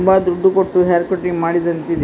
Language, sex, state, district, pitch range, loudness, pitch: Kannada, female, Karnataka, Dakshina Kannada, 170-190 Hz, -16 LUFS, 180 Hz